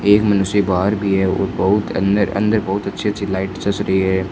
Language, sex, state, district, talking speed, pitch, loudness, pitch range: Hindi, male, Rajasthan, Bikaner, 225 wpm, 100 Hz, -18 LUFS, 95-105 Hz